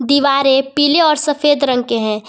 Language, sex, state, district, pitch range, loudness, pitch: Hindi, female, Jharkhand, Palamu, 250-295 Hz, -13 LUFS, 275 Hz